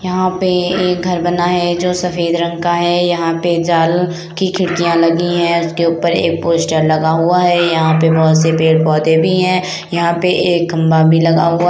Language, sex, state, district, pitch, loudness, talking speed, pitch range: Hindi, female, Bihar, Purnia, 170 Hz, -13 LUFS, 200 wpm, 165-180 Hz